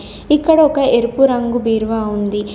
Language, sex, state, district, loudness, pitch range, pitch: Telugu, female, Telangana, Komaram Bheem, -15 LUFS, 220-275 Hz, 240 Hz